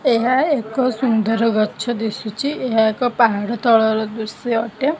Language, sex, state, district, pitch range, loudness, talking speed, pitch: Odia, female, Odisha, Khordha, 220-250 Hz, -18 LUFS, 130 wpm, 230 Hz